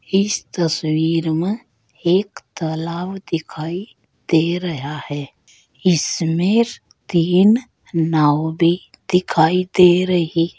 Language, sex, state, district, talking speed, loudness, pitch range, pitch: Hindi, female, Uttar Pradesh, Saharanpur, 95 wpm, -18 LUFS, 160-185 Hz, 170 Hz